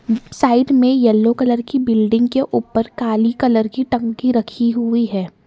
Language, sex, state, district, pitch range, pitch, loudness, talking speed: Hindi, male, Karnataka, Bangalore, 225-255 Hz, 235 Hz, -16 LUFS, 165 wpm